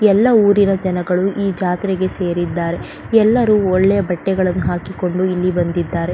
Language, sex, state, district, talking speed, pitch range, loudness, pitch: Kannada, female, Karnataka, Belgaum, 115 wpm, 180-200 Hz, -16 LUFS, 185 Hz